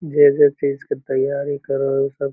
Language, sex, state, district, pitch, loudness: Magahi, male, Bihar, Lakhisarai, 140 Hz, -19 LUFS